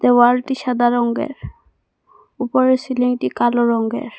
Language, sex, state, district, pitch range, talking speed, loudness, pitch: Bengali, female, Assam, Hailakandi, 240-255 Hz, 115 wpm, -18 LUFS, 245 Hz